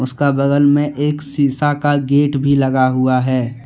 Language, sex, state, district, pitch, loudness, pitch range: Hindi, male, Jharkhand, Deoghar, 140 Hz, -15 LUFS, 130-145 Hz